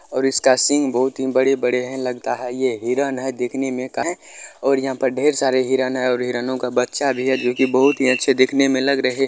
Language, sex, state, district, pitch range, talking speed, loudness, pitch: Maithili, male, Bihar, Kishanganj, 125-135 Hz, 245 wpm, -19 LUFS, 130 Hz